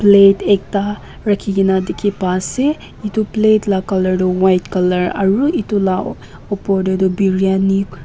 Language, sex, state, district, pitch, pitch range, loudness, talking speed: Nagamese, female, Nagaland, Kohima, 195 Hz, 190-205 Hz, -16 LUFS, 150 wpm